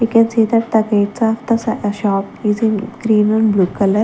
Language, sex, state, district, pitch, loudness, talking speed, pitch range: English, female, Chandigarh, Chandigarh, 220 Hz, -16 LUFS, 225 wpm, 205-230 Hz